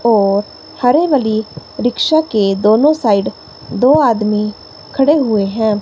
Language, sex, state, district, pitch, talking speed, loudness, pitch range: Hindi, female, Himachal Pradesh, Shimla, 220 Hz, 125 wpm, -14 LUFS, 210-270 Hz